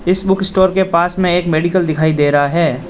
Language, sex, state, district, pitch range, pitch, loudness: Hindi, male, Arunachal Pradesh, Lower Dibang Valley, 155-190 Hz, 175 Hz, -14 LUFS